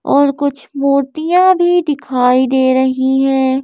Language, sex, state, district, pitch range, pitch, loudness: Hindi, female, Madhya Pradesh, Bhopal, 260-290 Hz, 275 Hz, -13 LUFS